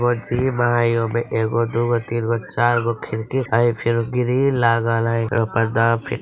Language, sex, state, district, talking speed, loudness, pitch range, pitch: Bajjika, female, Bihar, Vaishali, 155 wpm, -19 LUFS, 115-120 Hz, 115 Hz